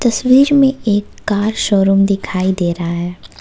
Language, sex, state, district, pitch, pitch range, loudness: Hindi, female, Jharkhand, Ranchi, 200 Hz, 180-230 Hz, -14 LUFS